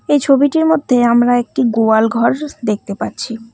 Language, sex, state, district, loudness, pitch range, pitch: Bengali, female, West Bengal, Cooch Behar, -14 LUFS, 230-280 Hz, 240 Hz